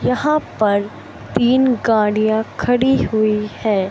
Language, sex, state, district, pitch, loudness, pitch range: Hindi, male, Madhya Pradesh, Katni, 220 Hz, -17 LUFS, 210-245 Hz